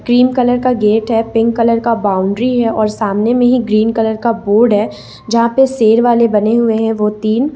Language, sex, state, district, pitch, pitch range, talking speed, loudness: Hindi, female, Jharkhand, Ranchi, 230 Hz, 215-240 Hz, 220 wpm, -13 LUFS